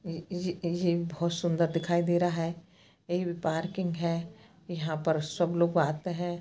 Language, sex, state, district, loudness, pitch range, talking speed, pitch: Hindi, female, Chhattisgarh, Bastar, -30 LUFS, 165-175 Hz, 150 wpm, 170 Hz